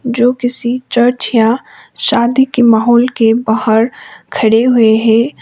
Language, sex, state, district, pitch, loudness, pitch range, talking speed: Hindi, female, Sikkim, Gangtok, 240 Hz, -11 LUFS, 225-245 Hz, 135 wpm